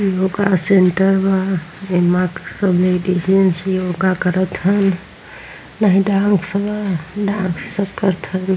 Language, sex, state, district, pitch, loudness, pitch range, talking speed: Hindi, female, Bihar, Vaishali, 190 Hz, -17 LUFS, 185-195 Hz, 90 wpm